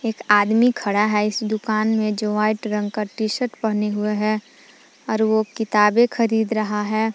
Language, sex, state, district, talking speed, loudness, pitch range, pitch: Hindi, female, Jharkhand, Palamu, 175 wpm, -20 LUFS, 210-220 Hz, 215 Hz